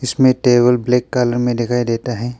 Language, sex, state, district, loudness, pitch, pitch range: Hindi, male, Arunachal Pradesh, Papum Pare, -16 LUFS, 125 Hz, 120-125 Hz